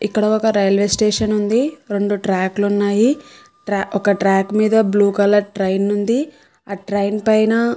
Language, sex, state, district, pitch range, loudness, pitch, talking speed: Telugu, female, Andhra Pradesh, Krishna, 200-220 Hz, -17 LUFS, 205 Hz, 145 wpm